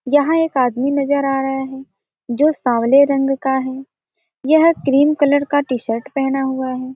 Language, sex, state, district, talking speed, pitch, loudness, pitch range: Hindi, female, Bihar, Gopalganj, 170 wpm, 270 Hz, -16 LUFS, 260-285 Hz